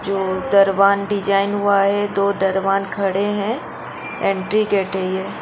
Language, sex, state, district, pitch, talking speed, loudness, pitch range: Hindi, female, Goa, North and South Goa, 200 Hz, 155 wpm, -18 LUFS, 195-205 Hz